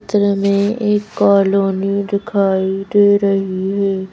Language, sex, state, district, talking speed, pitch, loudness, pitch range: Hindi, female, Madhya Pradesh, Bhopal, 115 wpm, 200 Hz, -15 LUFS, 195-205 Hz